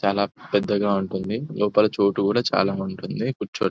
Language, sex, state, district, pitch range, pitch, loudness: Telugu, male, Telangana, Nalgonda, 100-105 Hz, 100 Hz, -23 LUFS